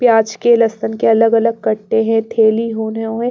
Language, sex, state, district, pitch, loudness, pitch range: Hindi, female, Bihar, Patna, 225 Hz, -15 LUFS, 220-230 Hz